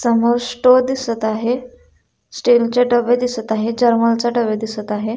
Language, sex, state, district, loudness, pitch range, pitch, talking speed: Marathi, female, Maharashtra, Dhule, -17 LUFS, 225-245 Hz, 235 Hz, 140 wpm